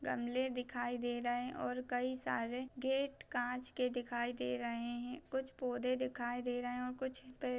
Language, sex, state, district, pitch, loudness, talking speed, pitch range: Hindi, female, Chhattisgarh, Raigarh, 250 Hz, -40 LUFS, 180 wpm, 245-255 Hz